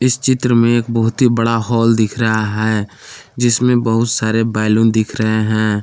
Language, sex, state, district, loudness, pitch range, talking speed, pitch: Hindi, male, Jharkhand, Palamu, -15 LUFS, 110-120 Hz, 175 wpm, 115 Hz